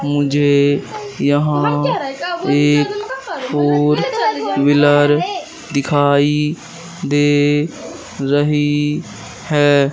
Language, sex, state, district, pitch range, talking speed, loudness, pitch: Hindi, male, Madhya Pradesh, Katni, 145-150 Hz, 55 wpm, -16 LUFS, 145 Hz